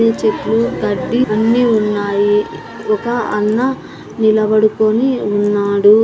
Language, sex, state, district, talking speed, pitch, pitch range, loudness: Telugu, female, Andhra Pradesh, Anantapur, 80 wpm, 215 Hz, 210-230 Hz, -15 LUFS